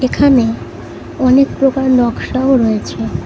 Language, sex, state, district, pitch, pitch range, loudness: Bengali, female, West Bengal, Cooch Behar, 255 Hz, 225-265 Hz, -13 LUFS